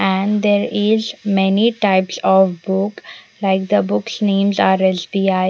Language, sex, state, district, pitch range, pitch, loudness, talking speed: English, female, Punjab, Pathankot, 190-205 Hz, 195 Hz, -16 LUFS, 140 wpm